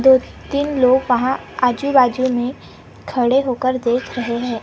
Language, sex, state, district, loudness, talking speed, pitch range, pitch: Hindi, female, Maharashtra, Gondia, -18 LUFS, 155 wpm, 245-265 Hz, 255 Hz